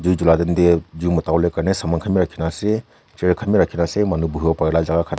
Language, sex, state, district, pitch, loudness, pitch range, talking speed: Nagamese, female, Nagaland, Kohima, 85 Hz, -19 LUFS, 80-90 Hz, 290 wpm